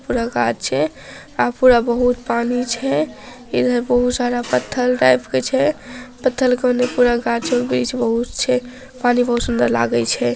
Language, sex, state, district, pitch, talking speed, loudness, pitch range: Maithili, female, Bihar, Samastipur, 245 Hz, 150 wpm, -18 LUFS, 235-250 Hz